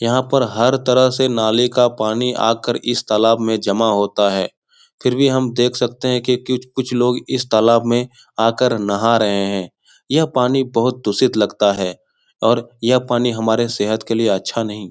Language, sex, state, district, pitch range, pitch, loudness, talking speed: Hindi, male, Bihar, Jahanabad, 110-125 Hz, 120 Hz, -17 LUFS, 185 wpm